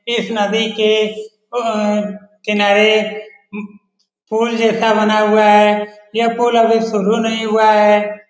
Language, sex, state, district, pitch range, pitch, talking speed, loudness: Hindi, male, Bihar, Lakhisarai, 210-220 Hz, 215 Hz, 115 wpm, -14 LUFS